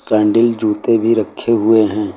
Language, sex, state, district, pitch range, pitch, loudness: Hindi, male, Uttar Pradesh, Lucknow, 105-115 Hz, 110 Hz, -14 LUFS